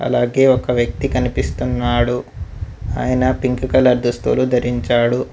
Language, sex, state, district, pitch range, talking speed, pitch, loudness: Telugu, male, Telangana, Mahabubabad, 120-125 Hz, 100 wpm, 120 Hz, -17 LUFS